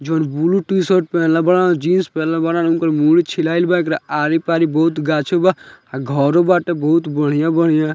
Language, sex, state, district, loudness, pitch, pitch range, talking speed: Bhojpuri, male, Bihar, Muzaffarpur, -16 LUFS, 165 Hz, 155-175 Hz, 180 wpm